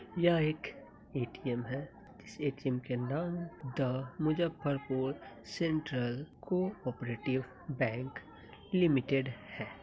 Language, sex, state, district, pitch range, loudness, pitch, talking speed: Hindi, male, Bihar, Muzaffarpur, 125-155 Hz, -35 LUFS, 135 Hz, 90 wpm